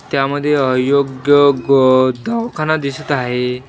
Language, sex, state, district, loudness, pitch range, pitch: Marathi, male, Maharashtra, Washim, -15 LUFS, 130-145 Hz, 135 Hz